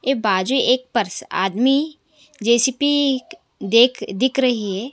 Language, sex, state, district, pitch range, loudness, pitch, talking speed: Hindi, female, Punjab, Kapurthala, 220-275 Hz, -18 LUFS, 255 Hz, 135 wpm